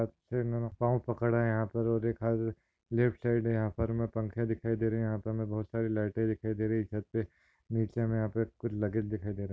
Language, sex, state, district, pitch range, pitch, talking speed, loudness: Hindi, male, Maharashtra, Nagpur, 110-115 Hz, 115 Hz, 265 wpm, -33 LUFS